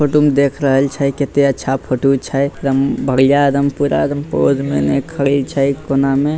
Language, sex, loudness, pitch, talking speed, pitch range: Bhojpuri, male, -15 LUFS, 140 Hz, 190 wpm, 135-140 Hz